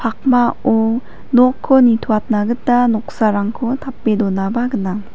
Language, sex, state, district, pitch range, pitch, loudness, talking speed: Garo, female, Meghalaya, West Garo Hills, 215-245 Hz, 230 Hz, -16 LUFS, 95 wpm